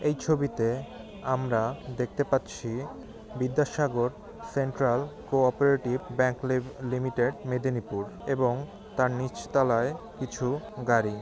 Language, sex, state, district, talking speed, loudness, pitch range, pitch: Bengali, male, West Bengal, Jhargram, 95 wpm, -29 LUFS, 125-135 Hz, 130 Hz